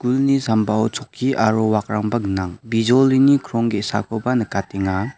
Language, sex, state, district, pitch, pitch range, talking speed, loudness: Garo, male, Meghalaya, West Garo Hills, 110 Hz, 105-125 Hz, 115 wpm, -19 LUFS